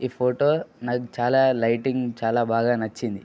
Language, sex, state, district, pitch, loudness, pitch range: Telugu, male, Andhra Pradesh, Srikakulam, 120 Hz, -23 LUFS, 115-130 Hz